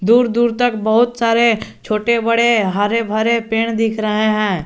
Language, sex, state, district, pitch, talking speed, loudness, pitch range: Hindi, male, Jharkhand, Garhwa, 230 Hz, 165 wpm, -16 LUFS, 215-235 Hz